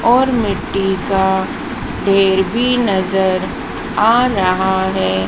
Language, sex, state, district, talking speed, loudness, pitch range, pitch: Hindi, female, Madhya Pradesh, Dhar, 100 wpm, -15 LUFS, 190-225 Hz, 195 Hz